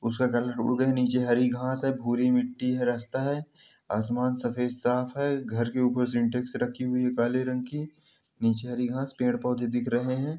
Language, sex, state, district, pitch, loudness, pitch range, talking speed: Hindi, male, Bihar, Samastipur, 125 Hz, -28 LUFS, 120-130 Hz, 200 wpm